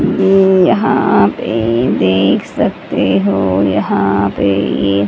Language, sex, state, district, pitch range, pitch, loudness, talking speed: Hindi, female, Haryana, Jhajjar, 95-115 Hz, 100 Hz, -13 LUFS, 105 wpm